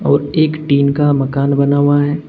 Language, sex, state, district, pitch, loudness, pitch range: Hindi, male, Uttar Pradesh, Saharanpur, 145 Hz, -14 LUFS, 140-145 Hz